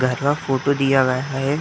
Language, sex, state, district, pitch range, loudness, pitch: Hindi, male, Uttar Pradesh, Etah, 130-140 Hz, -20 LUFS, 135 Hz